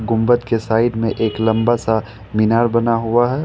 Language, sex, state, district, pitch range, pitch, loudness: Hindi, male, Jharkhand, Ranchi, 110-120 Hz, 115 Hz, -17 LUFS